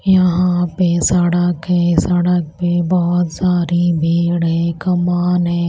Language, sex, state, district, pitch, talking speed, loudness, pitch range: Hindi, female, Maharashtra, Washim, 175 Hz, 125 wpm, -15 LUFS, 170-180 Hz